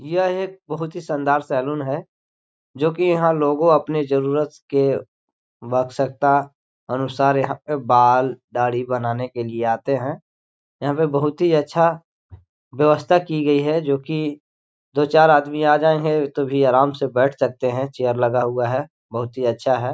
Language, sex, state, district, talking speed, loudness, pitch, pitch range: Hindi, male, Chhattisgarh, Korba, 160 wpm, -20 LUFS, 140 Hz, 125-150 Hz